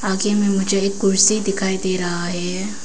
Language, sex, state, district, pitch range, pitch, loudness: Hindi, female, Arunachal Pradesh, Papum Pare, 190-200 Hz, 195 Hz, -18 LUFS